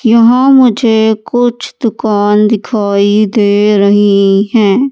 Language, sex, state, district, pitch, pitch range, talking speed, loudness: Hindi, female, Madhya Pradesh, Katni, 215 Hz, 205-230 Hz, 95 wpm, -9 LUFS